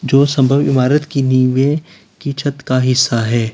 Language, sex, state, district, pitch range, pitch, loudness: Hindi, male, Uttar Pradesh, Lalitpur, 130-145 Hz, 135 Hz, -14 LUFS